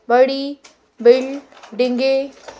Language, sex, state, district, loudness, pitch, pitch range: Hindi, female, Madhya Pradesh, Bhopal, -17 LUFS, 265 Hz, 245-275 Hz